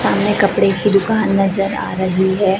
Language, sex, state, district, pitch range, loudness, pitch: Hindi, female, Chhattisgarh, Raipur, 195-205 Hz, -16 LUFS, 195 Hz